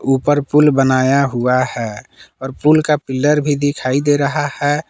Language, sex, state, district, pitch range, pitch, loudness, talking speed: Hindi, male, Jharkhand, Palamu, 135-145 Hz, 145 Hz, -15 LUFS, 170 wpm